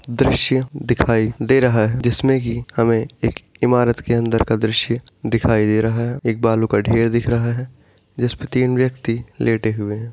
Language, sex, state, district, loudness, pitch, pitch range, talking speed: Hindi, male, Uttar Pradesh, Muzaffarnagar, -18 LUFS, 115 Hz, 110-125 Hz, 190 wpm